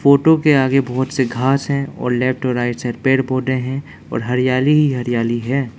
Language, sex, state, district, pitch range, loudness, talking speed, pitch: Hindi, male, Arunachal Pradesh, Lower Dibang Valley, 125-140 Hz, -17 LUFS, 195 wpm, 130 Hz